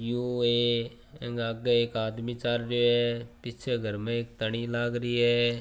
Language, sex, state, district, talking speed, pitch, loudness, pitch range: Marwari, male, Rajasthan, Churu, 170 wpm, 120 Hz, -28 LUFS, 115-120 Hz